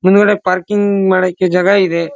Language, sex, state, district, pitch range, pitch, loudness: Kannada, male, Karnataka, Dharwad, 185-200 Hz, 185 Hz, -13 LUFS